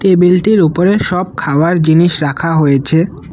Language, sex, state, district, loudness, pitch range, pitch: Bengali, male, Assam, Kamrup Metropolitan, -11 LUFS, 155-180 Hz, 170 Hz